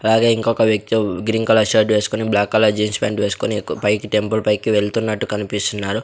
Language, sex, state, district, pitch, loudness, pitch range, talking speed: Telugu, male, Andhra Pradesh, Sri Satya Sai, 105 Hz, -18 LUFS, 105-110 Hz, 180 wpm